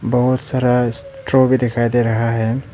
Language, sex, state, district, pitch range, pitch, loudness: Hindi, male, Arunachal Pradesh, Papum Pare, 115-130 Hz, 125 Hz, -17 LUFS